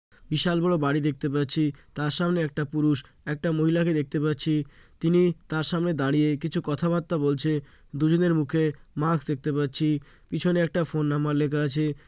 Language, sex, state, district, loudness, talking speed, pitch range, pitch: Bengali, male, West Bengal, Jalpaiguri, -26 LUFS, 170 wpm, 150-165 Hz, 155 Hz